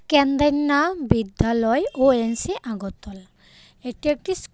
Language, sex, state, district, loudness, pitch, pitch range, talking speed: Bengali, female, Tripura, West Tripura, -21 LUFS, 265 Hz, 225-290 Hz, 90 wpm